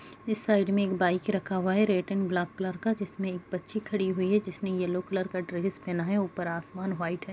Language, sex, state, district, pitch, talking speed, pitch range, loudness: Hindi, female, Bihar, Kishanganj, 190 Hz, 245 wpm, 180-200 Hz, -30 LUFS